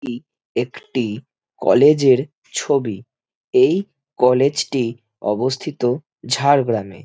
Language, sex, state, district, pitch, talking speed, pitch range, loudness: Bengali, male, West Bengal, Jhargram, 130 Hz, 85 wpm, 120-140 Hz, -19 LUFS